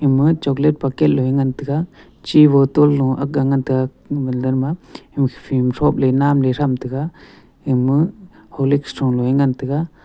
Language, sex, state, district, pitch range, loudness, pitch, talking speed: Wancho, male, Arunachal Pradesh, Longding, 130-145 Hz, -17 LUFS, 140 Hz, 145 wpm